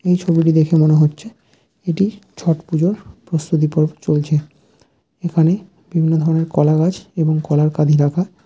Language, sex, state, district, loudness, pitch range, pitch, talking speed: Bengali, male, West Bengal, Jalpaiguri, -17 LUFS, 155-180 Hz, 160 Hz, 135 wpm